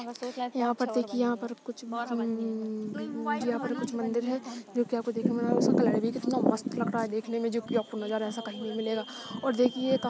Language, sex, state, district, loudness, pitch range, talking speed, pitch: Hindi, female, Chhattisgarh, Balrampur, -30 LUFS, 225-245 Hz, 220 wpm, 235 Hz